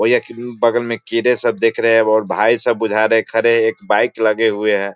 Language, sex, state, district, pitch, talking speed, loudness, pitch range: Hindi, male, Bihar, Sitamarhi, 115 Hz, 280 wpm, -16 LUFS, 110-115 Hz